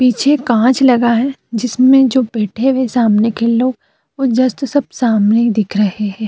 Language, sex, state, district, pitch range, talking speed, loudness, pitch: Hindi, female, Uttar Pradesh, Jyotiba Phule Nagar, 220-260 Hz, 180 wpm, -13 LUFS, 240 Hz